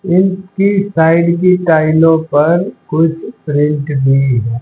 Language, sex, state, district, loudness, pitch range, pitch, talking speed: Hindi, female, Haryana, Charkhi Dadri, -12 LUFS, 150-180 Hz, 165 Hz, 115 wpm